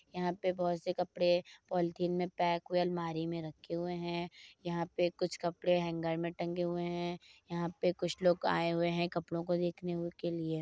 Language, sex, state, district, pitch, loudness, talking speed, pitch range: Hindi, female, Uttar Pradesh, Muzaffarnagar, 175 Hz, -35 LUFS, 205 wpm, 170-175 Hz